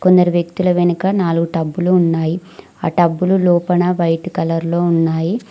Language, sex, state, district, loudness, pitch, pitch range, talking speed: Telugu, female, Telangana, Mahabubabad, -16 LUFS, 175 Hz, 165-180 Hz, 130 wpm